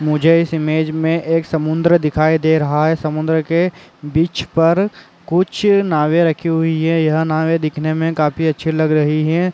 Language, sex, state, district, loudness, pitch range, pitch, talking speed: Hindi, male, Chhattisgarh, Korba, -16 LUFS, 155-165 Hz, 160 Hz, 175 wpm